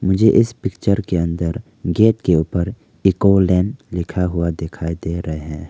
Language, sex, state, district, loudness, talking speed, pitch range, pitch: Hindi, male, Arunachal Pradesh, Lower Dibang Valley, -18 LUFS, 170 wpm, 85-100 Hz, 90 Hz